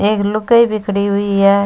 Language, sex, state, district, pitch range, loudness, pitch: Rajasthani, female, Rajasthan, Churu, 200-215 Hz, -14 LUFS, 205 Hz